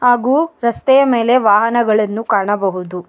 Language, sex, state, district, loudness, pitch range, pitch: Kannada, female, Karnataka, Bangalore, -14 LUFS, 205-250 Hz, 230 Hz